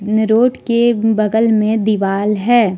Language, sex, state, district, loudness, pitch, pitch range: Hindi, male, Jharkhand, Deoghar, -14 LUFS, 220 Hz, 210-235 Hz